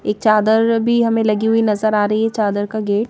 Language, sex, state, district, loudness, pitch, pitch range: Hindi, female, Madhya Pradesh, Bhopal, -16 LUFS, 215 Hz, 210-225 Hz